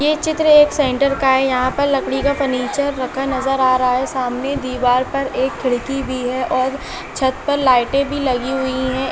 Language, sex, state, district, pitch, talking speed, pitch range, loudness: Hindi, female, Chhattisgarh, Bilaspur, 265 Hz, 205 wpm, 255-275 Hz, -17 LUFS